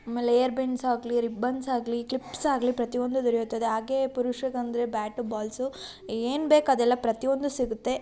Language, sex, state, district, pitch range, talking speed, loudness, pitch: Kannada, female, Karnataka, Shimoga, 235-260 Hz, 150 wpm, -27 LUFS, 245 Hz